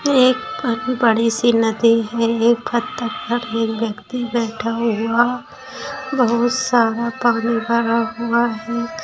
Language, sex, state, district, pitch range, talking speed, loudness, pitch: Hindi, female, Bihar, Sitamarhi, 230-245 Hz, 120 wpm, -18 LUFS, 235 Hz